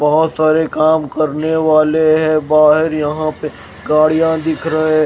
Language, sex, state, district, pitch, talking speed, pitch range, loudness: Hindi, male, Bihar, Patna, 155 Hz, 140 wpm, 155-160 Hz, -14 LUFS